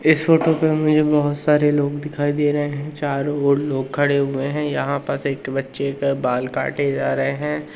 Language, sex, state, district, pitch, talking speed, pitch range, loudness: Hindi, male, Madhya Pradesh, Umaria, 145 Hz, 210 wpm, 140-150 Hz, -20 LUFS